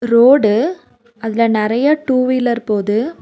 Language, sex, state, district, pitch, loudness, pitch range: Tamil, female, Tamil Nadu, Nilgiris, 235 Hz, -14 LUFS, 220-255 Hz